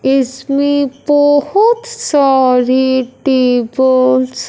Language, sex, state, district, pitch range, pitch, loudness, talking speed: Hindi, male, Punjab, Fazilka, 255-290 Hz, 265 Hz, -12 LUFS, 80 wpm